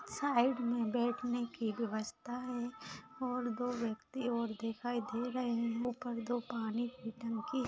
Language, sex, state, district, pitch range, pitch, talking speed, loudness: Hindi, female, Maharashtra, Nagpur, 230-245 Hz, 240 Hz, 150 wpm, -38 LUFS